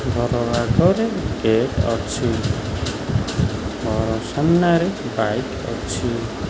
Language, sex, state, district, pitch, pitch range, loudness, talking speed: Odia, male, Odisha, Khordha, 120 Hz, 110-135 Hz, -21 LUFS, 75 wpm